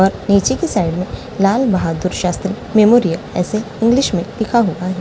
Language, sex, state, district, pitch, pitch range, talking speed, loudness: Hindi, female, Delhi, New Delhi, 200 Hz, 180-225 Hz, 170 wpm, -16 LUFS